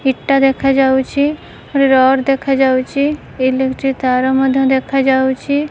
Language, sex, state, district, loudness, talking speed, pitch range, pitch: Odia, female, Odisha, Malkangiri, -14 LUFS, 125 wpm, 265-275 Hz, 270 Hz